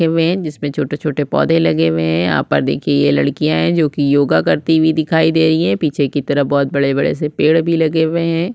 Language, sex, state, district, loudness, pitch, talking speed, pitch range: Hindi, female, Chhattisgarh, Sukma, -15 LUFS, 150 Hz, 245 wpm, 140-160 Hz